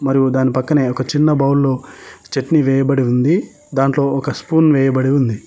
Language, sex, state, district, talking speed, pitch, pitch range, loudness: Telugu, male, Telangana, Mahabubabad, 155 wpm, 135 Hz, 130-145 Hz, -16 LUFS